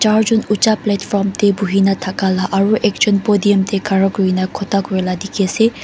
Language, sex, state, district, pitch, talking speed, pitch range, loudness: Nagamese, female, Mizoram, Aizawl, 200 Hz, 205 wpm, 195-210 Hz, -16 LUFS